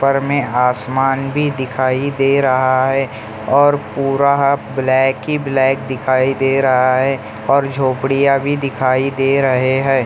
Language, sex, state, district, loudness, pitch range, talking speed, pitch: Hindi, male, Bihar, Jamui, -15 LUFS, 130-140 Hz, 145 wpm, 135 Hz